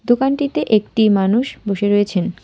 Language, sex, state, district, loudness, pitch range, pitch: Bengali, female, West Bengal, Alipurduar, -17 LUFS, 205-250 Hz, 215 Hz